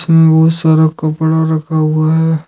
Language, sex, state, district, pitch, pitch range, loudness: Hindi, male, Jharkhand, Ranchi, 160 Hz, 155-160 Hz, -12 LUFS